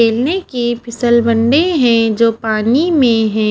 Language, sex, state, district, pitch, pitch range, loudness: Hindi, female, Haryana, Charkhi Dadri, 235 Hz, 225-255 Hz, -13 LUFS